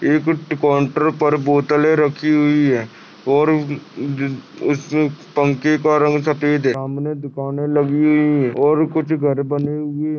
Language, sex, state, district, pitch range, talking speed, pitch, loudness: Hindi, male, Uttar Pradesh, Ghazipur, 140-150 Hz, 155 wpm, 150 Hz, -18 LUFS